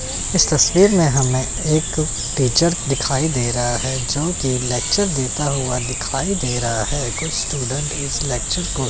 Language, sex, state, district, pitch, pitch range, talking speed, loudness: Hindi, male, Chandigarh, Chandigarh, 135 Hz, 125-155 Hz, 160 wpm, -18 LUFS